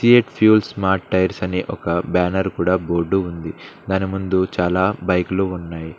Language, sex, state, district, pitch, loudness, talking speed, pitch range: Telugu, male, Telangana, Mahabubabad, 95 Hz, -19 LUFS, 150 wpm, 90-95 Hz